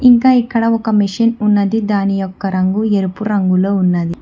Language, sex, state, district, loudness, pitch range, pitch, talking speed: Telugu, female, Telangana, Hyderabad, -14 LUFS, 195-225 Hz, 205 Hz, 155 wpm